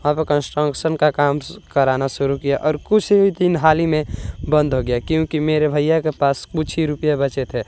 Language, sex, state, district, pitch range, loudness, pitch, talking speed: Hindi, male, Bihar, West Champaran, 140-160 Hz, -18 LUFS, 150 Hz, 225 wpm